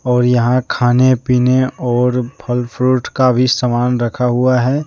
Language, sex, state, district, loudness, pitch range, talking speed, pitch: Hindi, male, Jharkhand, Deoghar, -14 LUFS, 125-130 Hz, 160 wpm, 125 Hz